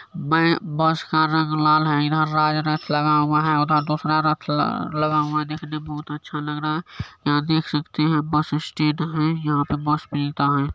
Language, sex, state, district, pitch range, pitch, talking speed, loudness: Maithili, male, Bihar, Supaul, 150-155 Hz, 155 Hz, 200 wpm, -21 LUFS